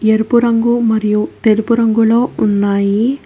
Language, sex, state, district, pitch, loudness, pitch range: Telugu, female, Telangana, Hyderabad, 225 Hz, -13 LUFS, 215-235 Hz